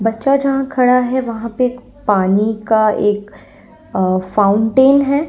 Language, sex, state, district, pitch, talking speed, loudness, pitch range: Hindi, female, Uttar Pradesh, Lalitpur, 230 Hz, 135 wpm, -15 LUFS, 205-265 Hz